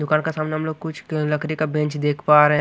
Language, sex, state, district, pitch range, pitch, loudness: Hindi, male, Maharashtra, Washim, 150-155 Hz, 155 Hz, -21 LUFS